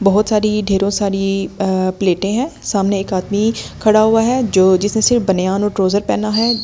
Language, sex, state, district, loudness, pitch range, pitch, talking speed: Hindi, female, Delhi, New Delhi, -15 LUFS, 195-215 Hz, 200 Hz, 180 wpm